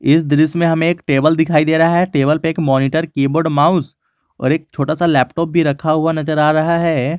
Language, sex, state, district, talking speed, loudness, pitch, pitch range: Hindi, male, Jharkhand, Garhwa, 240 wpm, -15 LUFS, 155 Hz, 150-165 Hz